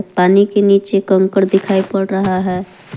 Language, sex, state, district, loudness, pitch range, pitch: Hindi, female, Jharkhand, Palamu, -14 LUFS, 190-200 Hz, 195 Hz